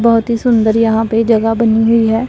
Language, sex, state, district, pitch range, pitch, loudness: Hindi, male, Punjab, Pathankot, 225-230 Hz, 225 Hz, -12 LUFS